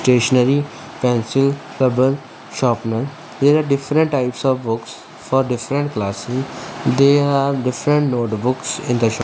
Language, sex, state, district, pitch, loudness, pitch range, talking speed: English, male, Punjab, Fazilka, 130 Hz, -18 LUFS, 120-140 Hz, 135 wpm